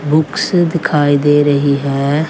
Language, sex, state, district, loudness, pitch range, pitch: Hindi, female, Haryana, Charkhi Dadri, -13 LUFS, 140-155 Hz, 145 Hz